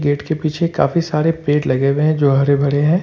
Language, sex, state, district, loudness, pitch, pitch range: Hindi, male, Jharkhand, Ranchi, -16 LUFS, 150 Hz, 140-160 Hz